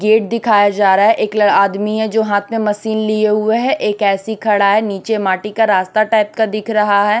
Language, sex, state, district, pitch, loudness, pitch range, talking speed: Hindi, female, Chhattisgarh, Raipur, 215 Hz, -14 LUFS, 205-220 Hz, 240 wpm